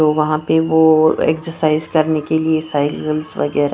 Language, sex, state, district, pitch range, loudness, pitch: Hindi, female, Punjab, Kapurthala, 155-160 Hz, -16 LUFS, 155 Hz